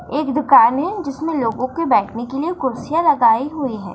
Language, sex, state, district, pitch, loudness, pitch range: Hindi, female, Maharashtra, Chandrapur, 275 Hz, -17 LUFS, 240-315 Hz